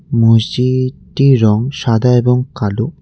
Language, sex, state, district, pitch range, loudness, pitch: Bengali, male, West Bengal, Cooch Behar, 115-130 Hz, -13 LUFS, 125 Hz